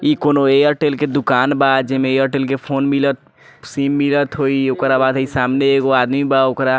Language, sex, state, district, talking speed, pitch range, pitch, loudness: Bhojpuri, male, Bihar, Muzaffarpur, 205 wpm, 135-140 Hz, 135 Hz, -16 LUFS